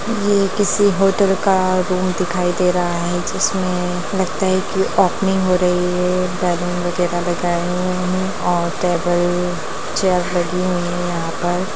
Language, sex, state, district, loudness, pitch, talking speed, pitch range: Hindi, female, Bihar, Lakhisarai, -18 LUFS, 180 Hz, 160 wpm, 175-190 Hz